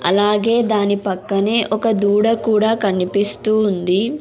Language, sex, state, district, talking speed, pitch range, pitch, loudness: Telugu, female, Andhra Pradesh, Sri Satya Sai, 115 wpm, 200-220 Hz, 210 Hz, -17 LUFS